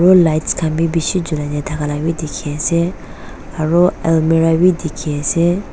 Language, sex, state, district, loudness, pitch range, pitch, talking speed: Nagamese, female, Nagaland, Dimapur, -16 LUFS, 150-170 Hz, 165 Hz, 155 wpm